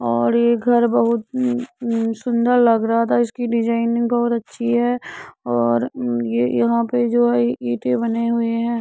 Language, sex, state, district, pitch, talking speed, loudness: Hindi, female, Uttar Pradesh, Muzaffarnagar, 230 Hz, 155 wpm, -19 LUFS